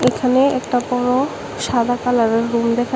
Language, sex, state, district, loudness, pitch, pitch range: Bengali, female, Tripura, West Tripura, -18 LUFS, 245 Hz, 235-255 Hz